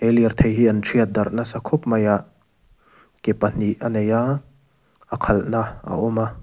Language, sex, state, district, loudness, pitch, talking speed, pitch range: Mizo, male, Mizoram, Aizawl, -21 LUFS, 115 Hz, 185 wpm, 110-120 Hz